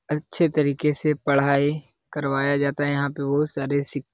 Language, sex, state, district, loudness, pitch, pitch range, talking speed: Hindi, male, Bihar, Jahanabad, -23 LUFS, 140 Hz, 140-150 Hz, 190 wpm